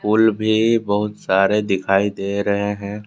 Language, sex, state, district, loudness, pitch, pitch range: Hindi, male, Jharkhand, Deoghar, -18 LUFS, 100 Hz, 100-105 Hz